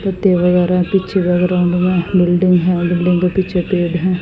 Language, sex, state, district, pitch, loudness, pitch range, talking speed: Hindi, female, Haryana, Jhajjar, 180 Hz, -14 LUFS, 175-185 Hz, 155 wpm